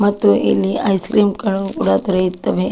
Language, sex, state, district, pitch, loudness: Kannada, female, Karnataka, Dakshina Kannada, 185 Hz, -16 LUFS